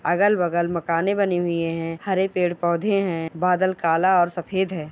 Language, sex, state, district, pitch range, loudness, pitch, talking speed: Hindi, female, Goa, North and South Goa, 170-190 Hz, -22 LUFS, 175 Hz, 185 wpm